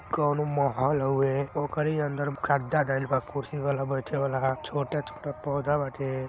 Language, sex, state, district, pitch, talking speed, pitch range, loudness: Hindi, male, Uttar Pradesh, Deoria, 140 Hz, 145 wpm, 135-145 Hz, -28 LUFS